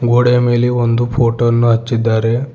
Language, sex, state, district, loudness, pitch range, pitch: Kannada, male, Karnataka, Bidar, -14 LUFS, 115-120 Hz, 120 Hz